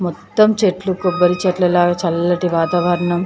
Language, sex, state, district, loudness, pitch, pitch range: Telugu, female, Andhra Pradesh, Chittoor, -16 LUFS, 180 Hz, 175-185 Hz